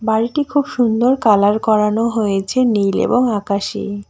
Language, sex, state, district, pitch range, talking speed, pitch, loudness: Bengali, female, West Bengal, Cooch Behar, 205-245 Hz, 130 wpm, 220 Hz, -16 LUFS